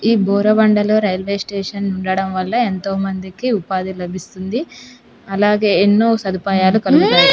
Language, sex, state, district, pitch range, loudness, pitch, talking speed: Telugu, female, Telangana, Nalgonda, 190-220 Hz, -16 LUFS, 200 Hz, 125 wpm